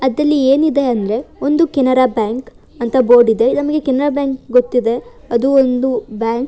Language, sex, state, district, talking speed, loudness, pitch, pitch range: Kannada, female, Karnataka, Shimoga, 160 wpm, -15 LUFS, 255 Hz, 235-275 Hz